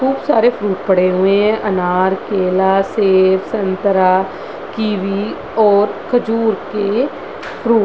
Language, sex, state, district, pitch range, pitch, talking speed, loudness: Hindi, female, Bihar, Madhepura, 190-220 Hz, 200 Hz, 120 wpm, -15 LUFS